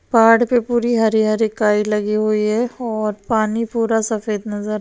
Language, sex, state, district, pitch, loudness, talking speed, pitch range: Hindi, female, Bihar, East Champaran, 220 Hz, -18 LUFS, 175 wpm, 215-230 Hz